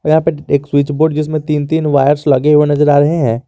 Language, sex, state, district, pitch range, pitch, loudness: Hindi, male, Jharkhand, Garhwa, 145-155 Hz, 150 Hz, -13 LUFS